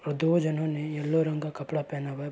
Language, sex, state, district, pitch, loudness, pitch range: Hindi, male, Uttar Pradesh, Varanasi, 150 Hz, -29 LUFS, 145-155 Hz